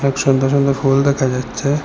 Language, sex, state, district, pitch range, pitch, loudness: Bengali, male, Assam, Hailakandi, 135-140 Hz, 140 Hz, -16 LUFS